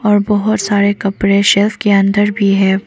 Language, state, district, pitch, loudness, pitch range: Hindi, Arunachal Pradesh, Papum Pare, 200 Hz, -13 LUFS, 200-205 Hz